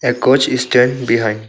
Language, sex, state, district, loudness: English, male, Arunachal Pradesh, Longding, -14 LUFS